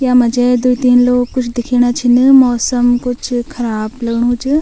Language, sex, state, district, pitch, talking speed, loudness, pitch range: Garhwali, female, Uttarakhand, Tehri Garhwal, 245 Hz, 155 wpm, -13 LUFS, 245-250 Hz